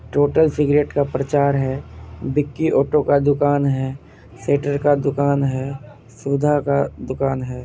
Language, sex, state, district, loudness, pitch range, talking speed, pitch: Hindi, male, Bihar, Kishanganj, -19 LUFS, 135-145 Hz, 140 wpm, 140 Hz